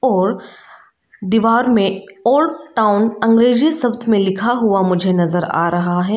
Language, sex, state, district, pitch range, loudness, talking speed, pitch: Hindi, female, Arunachal Pradesh, Lower Dibang Valley, 190-240 Hz, -15 LUFS, 145 wpm, 215 Hz